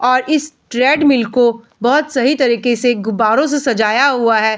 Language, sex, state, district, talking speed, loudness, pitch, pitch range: Hindi, female, Bihar, Bhagalpur, 170 wpm, -14 LUFS, 250 Hz, 235-280 Hz